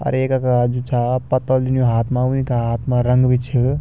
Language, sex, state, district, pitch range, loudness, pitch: Garhwali, male, Uttarakhand, Tehri Garhwal, 125-130 Hz, -18 LUFS, 125 Hz